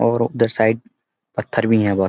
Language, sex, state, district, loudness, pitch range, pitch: Hindi, male, Uttarakhand, Uttarkashi, -19 LUFS, 105-115 Hz, 115 Hz